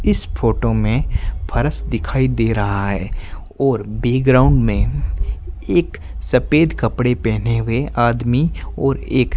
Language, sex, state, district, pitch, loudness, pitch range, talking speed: Hindi, male, Rajasthan, Bikaner, 115 Hz, -18 LUFS, 100-130 Hz, 120 wpm